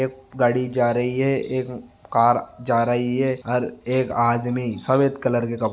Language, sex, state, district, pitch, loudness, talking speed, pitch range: Marwari, male, Rajasthan, Nagaur, 125 Hz, -22 LUFS, 190 wpm, 120-130 Hz